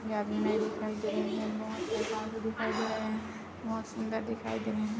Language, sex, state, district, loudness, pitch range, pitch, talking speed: Hindi, female, Chhattisgarh, Kabirdham, -34 LUFS, 215-220 Hz, 220 Hz, 225 wpm